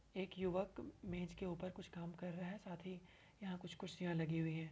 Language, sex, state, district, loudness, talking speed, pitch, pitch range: Hindi, female, Uttar Pradesh, Varanasi, -47 LUFS, 230 wpm, 180 Hz, 175-185 Hz